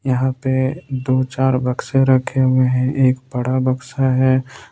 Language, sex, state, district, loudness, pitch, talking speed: Hindi, male, Jharkhand, Ranchi, -18 LUFS, 130 Hz, 150 wpm